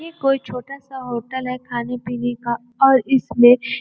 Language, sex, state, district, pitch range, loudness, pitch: Hindi, female, Uttar Pradesh, Gorakhpur, 240-265 Hz, -19 LUFS, 250 Hz